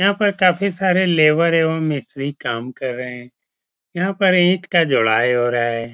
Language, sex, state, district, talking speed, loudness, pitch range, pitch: Hindi, male, Uttar Pradesh, Etah, 190 wpm, -17 LUFS, 125-185 Hz, 160 Hz